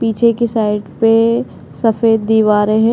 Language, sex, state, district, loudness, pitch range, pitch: Hindi, female, Chhattisgarh, Bastar, -14 LUFS, 215-230 Hz, 225 Hz